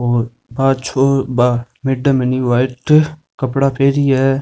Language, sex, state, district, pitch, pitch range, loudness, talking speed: Rajasthani, male, Rajasthan, Nagaur, 135 Hz, 125-135 Hz, -15 LUFS, 135 wpm